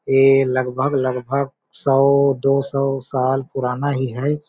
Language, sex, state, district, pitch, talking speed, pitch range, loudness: Hindi, male, Chhattisgarh, Balrampur, 135 Hz, 95 wpm, 130-140 Hz, -19 LUFS